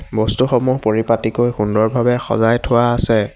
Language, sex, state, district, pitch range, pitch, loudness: Assamese, male, Assam, Hailakandi, 110-120 Hz, 115 Hz, -16 LUFS